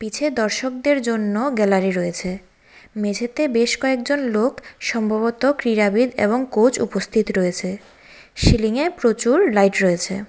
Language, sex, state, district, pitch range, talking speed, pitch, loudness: Bengali, female, Tripura, West Tripura, 205-255 Hz, 110 wpm, 225 Hz, -19 LUFS